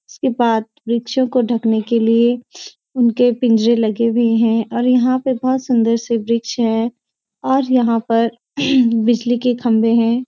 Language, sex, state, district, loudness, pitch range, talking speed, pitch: Hindi, female, Uttarakhand, Uttarkashi, -16 LUFS, 230-250 Hz, 155 wpm, 235 Hz